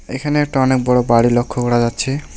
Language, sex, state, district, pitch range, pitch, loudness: Bengali, male, West Bengal, Alipurduar, 120-135 Hz, 125 Hz, -16 LUFS